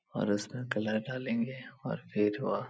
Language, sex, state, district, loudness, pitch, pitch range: Hindi, male, Bihar, Supaul, -34 LUFS, 115 Hz, 105-125 Hz